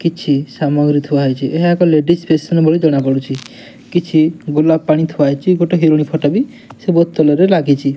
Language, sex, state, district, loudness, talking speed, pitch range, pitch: Odia, male, Odisha, Nuapada, -14 LUFS, 135 wpm, 145-170 Hz, 160 Hz